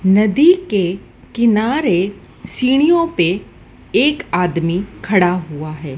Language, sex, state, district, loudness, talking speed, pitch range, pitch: Hindi, female, Madhya Pradesh, Dhar, -16 LUFS, 100 wpm, 175-255 Hz, 195 Hz